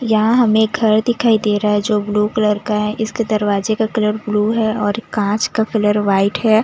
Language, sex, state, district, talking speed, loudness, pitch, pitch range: Hindi, female, Chandigarh, Chandigarh, 215 wpm, -16 LUFS, 215 Hz, 210-220 Hz